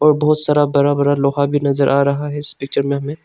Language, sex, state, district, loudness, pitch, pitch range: Hindi, male, Arunachal Pradesh, Longding, -15 LUFS, 145 Hz, 140-145 Hz